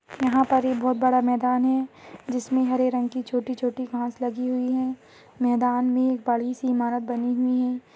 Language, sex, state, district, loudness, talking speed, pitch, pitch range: Hindi, female, Chhattisgarh, Sarguja, -24 LUFS, 190 wpm, 250 Hz, 245-255 Hz